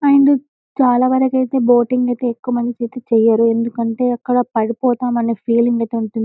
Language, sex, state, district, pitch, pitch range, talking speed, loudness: Telugu, female, Telangana, Karimnagar, 245 Hz, 230-250 Hz, 145 wpm, -16 LUFS